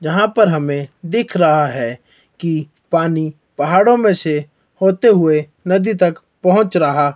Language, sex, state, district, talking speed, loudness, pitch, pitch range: Hindi, male, Himachal Pradesh, Shimla, 145 wpm, -15 LUFS, 165 Hz, 150-190 Hz